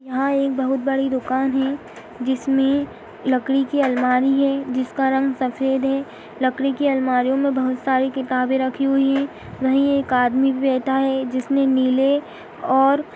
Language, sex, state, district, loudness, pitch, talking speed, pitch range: Hindi, female, Uttar Pradesh, Etah, -20 LUFS, 265 Hz, 160 wpm, 260-275 Hz